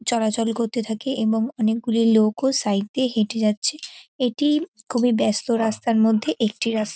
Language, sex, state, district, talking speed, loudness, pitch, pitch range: Bengali, female, West Bengal, North 24 Parganas, 140 wpm, -21 LUFS, 225 Hz, 220-245 Hz